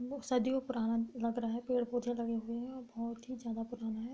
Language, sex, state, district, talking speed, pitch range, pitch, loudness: Hindi, female, Bihar, Darbhanga, 230 wpm, 230-250 Hz, 235 Hz, -37 LUFS